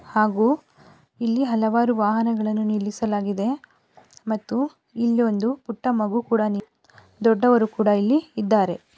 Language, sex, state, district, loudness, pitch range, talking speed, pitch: Kannada, female, Karnataka, Raichur, -22 LUFS, 215-240 Hz, 105 wpm, 225 Hz